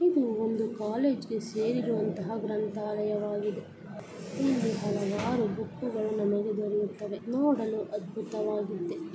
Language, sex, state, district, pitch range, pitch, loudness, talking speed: Kannada, female, Karnataka, Chamarajanagar, 205-225 Hz, 215 Hz, -31 LUFS, 70 wpm